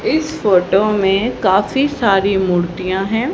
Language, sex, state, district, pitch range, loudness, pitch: Hindi, female, Haryana, Charkhi Dadri, 185-215 Hz, -15 LUFS, 195 Hz